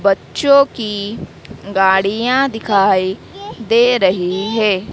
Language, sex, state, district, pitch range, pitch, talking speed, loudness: Hindi, female, Madhya Pradesh, Dhar, 195-240 Hz, 210 Hz, 85 wpm, -15 LUFS